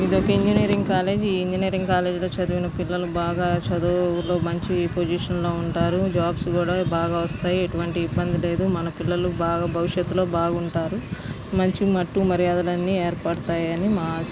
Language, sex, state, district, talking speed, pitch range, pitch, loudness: Telugu, male, Andhra Pradesh, Guntur, 135 wpm, 170-180 Hz, 175 Hz, -23 LUFS